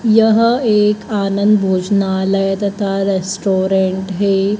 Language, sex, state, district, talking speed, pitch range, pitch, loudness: Hindi, male, Madhya Pradesh, Dhar, 90 wpm, 190-210 Hz, 195 Hz, -15 LUFS